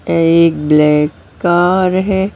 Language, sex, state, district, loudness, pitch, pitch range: Hindi, female, Maharashtra, Mumbai Suburban, -12 LUFS, 170 Hz, 150-185 Hz